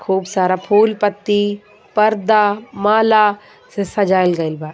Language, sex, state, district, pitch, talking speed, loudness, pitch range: Bhojpuri, female, Jharkhand, Palamu, 205 Hz, 125 wpm, -16 LUFS, 190-210 Hz